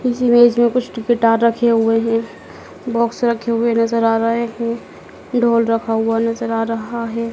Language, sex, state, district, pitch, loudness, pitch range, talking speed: Hindi, female, Madhya Pradesh, Dhar, 230 Hz, -17 LUFS, 230-235 Hz, 180 wpm